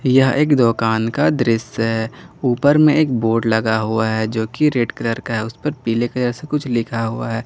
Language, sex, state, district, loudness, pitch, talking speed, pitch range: Hindi, male, Jharkhand, Garhwa, -18 LUFS, 115 Hz, 210 wpm, 115-135 Hz